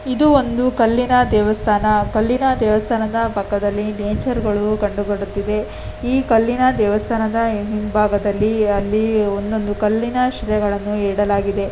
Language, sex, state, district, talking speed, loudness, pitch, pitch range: Kannada, female, Karnataka, Dakshina Kannada, 95 wpm, -18 LUFS, 215 Hz, 205-230 Hz